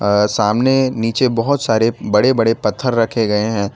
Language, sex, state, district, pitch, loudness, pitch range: Hindi, male, Gujarat, Valsad, 115 Hz, -16 LUFS, 105-125 Hz